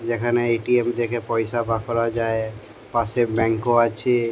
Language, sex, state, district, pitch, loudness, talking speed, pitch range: Bengali, male, West Bengal, Jhargram, 115 Hz, -22 LUFS, 150 wpm, 115-120 Hz